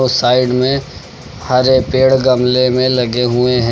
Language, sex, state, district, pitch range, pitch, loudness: Hindi, male, Uttar Pradesh, Lucknow, 125-130 Hz, 125 Hz, -13 LUFS